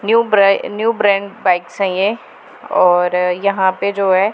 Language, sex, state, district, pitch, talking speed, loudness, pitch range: Hindi, female, Punjab, Pathankot, 195 Hz, 180 wpm, -15 LUFS, 185-205 Hz